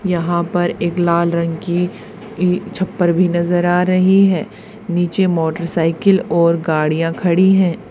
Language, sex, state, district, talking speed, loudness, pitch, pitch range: Hindi, female, Haryana, Charkhi Dadri, 145 wpm, -16 LUFS, 175 Hz, 170-190 Hz